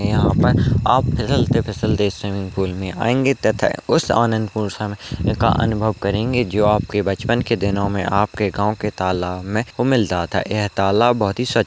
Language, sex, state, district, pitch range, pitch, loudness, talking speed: Hindi, male, Rajasthan, Nagaur, 100-115 Hz, 105 Hz, -19 LUFS, 190 wpm